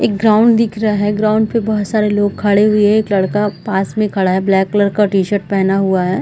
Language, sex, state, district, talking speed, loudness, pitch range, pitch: Hindi, female, Chhattisgarh, Raigarh, 240 wpm, -14 LUFS, 195-215 Hz, 205 Hz